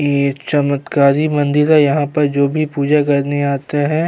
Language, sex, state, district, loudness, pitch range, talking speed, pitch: Hindi, male, Uttar Pradesh, Jyotiba Phule Nagar, -15 LUFS, 140-150 Hz, 205 wpm, 145 Hz